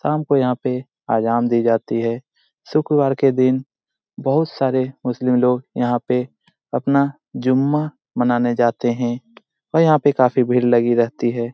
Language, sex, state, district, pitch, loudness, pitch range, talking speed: Hindi, male, Bihar, Jamui, 125 Hz, -19 LUFS, 120-135 Hz, 155 wpm